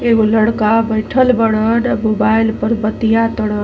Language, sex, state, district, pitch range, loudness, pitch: Bhojpuri, female, Uttar Pradesh, Ghazipur, 215-230 Hz, -14 LUFS, 225 Hz